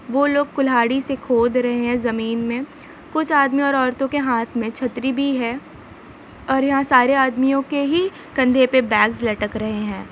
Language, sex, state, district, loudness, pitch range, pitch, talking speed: Hindi, female, Jharkhand, Sahebganj, -19 LUFS, 235-275 Hz, 260 Hz, 185 wpm